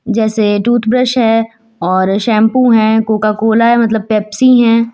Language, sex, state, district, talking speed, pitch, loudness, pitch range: Hindi, female, Uttar Pradesh, Lucknow, 135 wpm, 225 Hz, -11 LUFS, 215-235 Hz